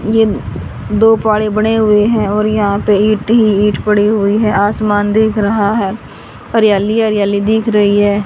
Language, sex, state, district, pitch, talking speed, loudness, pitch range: Hindi, female, Haryana, Charkhi Dadri, 210 Hz, 175 wpm, -12 LUFS, 205-220 Hz